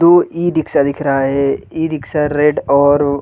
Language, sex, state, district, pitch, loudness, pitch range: Hindi, male, Chhattisgarh, Balrampur, 145 Hz, -14 LUFS, 140-160 Hz